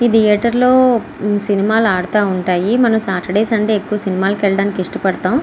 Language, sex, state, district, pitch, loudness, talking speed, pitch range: Telugu, female, Andhra Pradesh, Srikakulam, 210 Hz, -15 LUFS, 155 wpm, 190-225 Hz